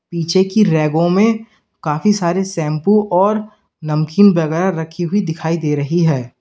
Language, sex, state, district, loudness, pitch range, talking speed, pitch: Hindi, male, Uttar Pradesh, Lalitpur, -16 LUFS, 160-205 Hz, 150 wpm, 175 Hz